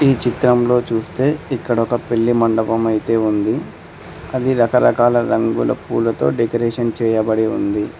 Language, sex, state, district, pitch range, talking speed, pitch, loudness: Telugu, male, Telangana, Mahabubabad, 115-120 Hz, 120 wpm, 115 Hz, -17 LUFS